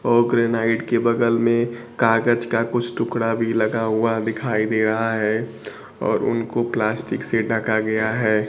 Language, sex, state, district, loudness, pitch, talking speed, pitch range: Hindi, male, Bihar, Kaimur, -21 LUFS, 115 Hz, 160 wpm, 110-120 Hz